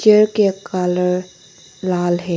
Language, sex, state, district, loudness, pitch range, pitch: Hindi, female, Arunachal Pradesh, Longding, -18 LUFS, 175-190 Hz, 180 Hz